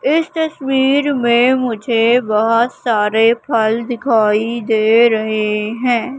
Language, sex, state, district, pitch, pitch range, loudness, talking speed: Hindi, female, Madhya Pradesh, Katni, 235 Hz, 220-255 Hz, -15 LUFS, 105 wpm